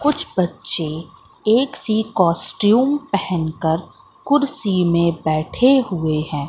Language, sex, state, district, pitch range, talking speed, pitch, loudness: Hindi, female, Madhya Pradesh, Katni, 160-250 Hz, 110 wpm, 185 Hz, -18 LUFS